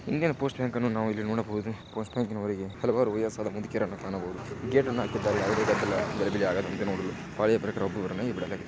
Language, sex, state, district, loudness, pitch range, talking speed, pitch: Kannada, male, Karnataka, Shimoga, -30 LUFS, 105-125 Hz, 150 wpm, 110 Hz